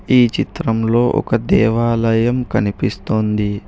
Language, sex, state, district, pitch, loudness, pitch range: Telugu, male, Telangana, Hyderabad, 115 Hz, -16 LUFS, 105-120 Hz